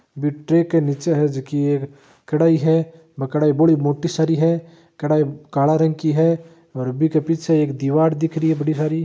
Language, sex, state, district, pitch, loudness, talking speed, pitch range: Marwari, male, Rajasthan, Nagaur, 160 Hz, -19 LUFS, 200 wpm, 145-165 Hz